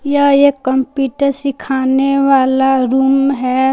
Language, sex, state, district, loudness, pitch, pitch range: Hindi, female, Jharkhand, Palamu, -13 LUFS, 270 Hz, 265-275 Hz